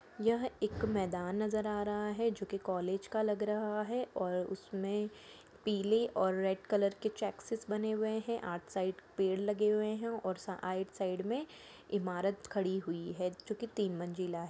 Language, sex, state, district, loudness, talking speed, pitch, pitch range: Hindi, female, Jharkhand, Jamtara, -36 LUFS, 180 wpm, 205 Hz, 190-215 Hz